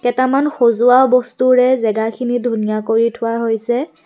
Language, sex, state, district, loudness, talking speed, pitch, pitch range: Assamese, female, Assam, Kamrup Metropolitan, -15 LUFS, 120 wpm, 245 Hz, 230-255 Hz